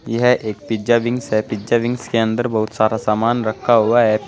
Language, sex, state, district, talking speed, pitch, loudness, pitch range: Hindi, male, Uttar Pradesh, Saharanpur, 210 wpm, 115 Hz, -18 LUFS, 110-120 Hz